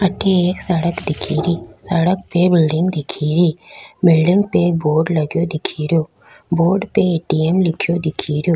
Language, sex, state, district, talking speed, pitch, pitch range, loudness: Rajasthani, female, Rajasthan, Nagaur, 140 wpm, 170 Hz, 160-180 Hz, -17 LUFS